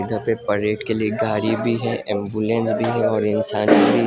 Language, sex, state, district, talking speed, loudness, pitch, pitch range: Hindi, male, Assam, Hailakandi, 205 wpm, -20 LUFS, 110 Hz, 105-115 Hz